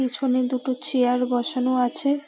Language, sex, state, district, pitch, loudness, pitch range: Bengali, female, West Bengal, Paschim Medinipur, 255 Hz, -23 LUFS, 250-260 Hz